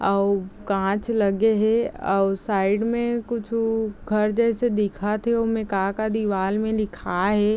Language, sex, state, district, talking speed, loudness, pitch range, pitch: Chhattisgarhi, female, Chhattisgarh, Raigarh, 160 wpm, -23 LUFS, 200-225 Hz, 215 Hz